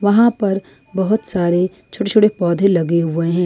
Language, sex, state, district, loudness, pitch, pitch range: Hindi, female, Jharkhand, Ranchi, -17 LUFS, 190 Hz, 170-210 Hz